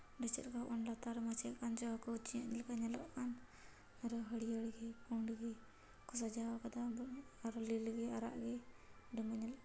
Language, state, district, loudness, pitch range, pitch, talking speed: Santali, Jharkhand, Sahebganj, -45 LUFS, 230-240 Hz, 235 Hz, 105 wpm